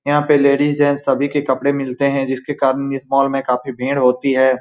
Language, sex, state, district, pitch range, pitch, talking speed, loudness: Hindi, male, Bihar, Saran, 130-140 Hz, 135 Hz, 235 wpm, -17 LUFS